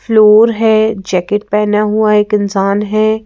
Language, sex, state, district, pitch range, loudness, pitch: Hindi, female, Madhya Pradesh, Bhopal, 205-220 Hz, -11 LUFS, 210 Hz